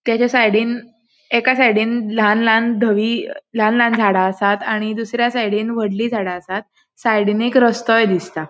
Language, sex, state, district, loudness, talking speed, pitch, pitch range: Konkani, female, Goa, North and South Goa, -17 LUFS, 150 wpm, 225 Hz, 210-235 Hz